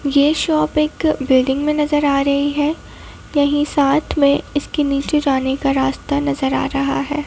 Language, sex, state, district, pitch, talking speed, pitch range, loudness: Hindi, female, Madhya Pradesh, Bhopal, 285 Hz, 175 wpm, 275-295 Hz, -17 LUFS